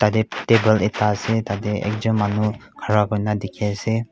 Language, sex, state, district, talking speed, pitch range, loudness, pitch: Nagamese, male, Nagaland, Kohima, 175 wpm, 105-110 Hz, -21 LUFS, 105 Hz